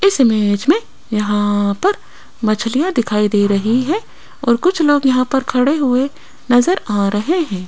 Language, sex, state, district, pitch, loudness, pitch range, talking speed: Hindi, female, Rajasthan, Jaipur, 250 Hz, -16 LUFS, 210-295 Hz, 165 wpm